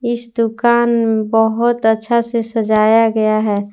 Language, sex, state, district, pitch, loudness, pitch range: Hindi, female, Jharkhand, Palamu, 225 Hz, -15 LUFS, 220-235 Hz